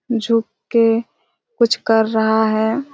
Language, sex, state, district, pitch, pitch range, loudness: Hindi, female, Chhattisgarh, Raigarh, 230 Hz, 220-235 Hz, -17 LUFS